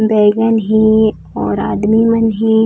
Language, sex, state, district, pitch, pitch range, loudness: Chhattisgarhi, female, Chhattisgarh, Raigarh, 220 Hz, 215-225 Hz, -13 LUFS